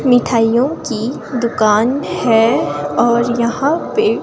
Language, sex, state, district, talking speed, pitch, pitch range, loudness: Hindi, female, Himachal Pradesh, Shimla, 100 wpm, 240 Hz, 230-255 Hz, -15 LUFS